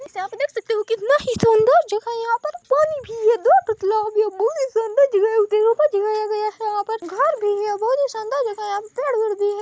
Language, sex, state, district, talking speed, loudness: Hindi, female, Chhattisgarh, Balrampur, 205 wpm, -20 LUFS